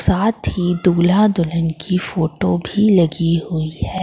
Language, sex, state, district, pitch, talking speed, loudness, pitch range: Hindi, female, Madhya Pradesh, Katni, 175 Hz, 150 wpm, -17 LUFS, 165-190 Hz